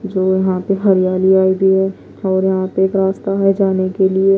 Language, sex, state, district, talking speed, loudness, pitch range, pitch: Hindi, female, Odisha, Nuapada, 180 wpm, -15 LUFS, 190-195 Hz, 190 Hz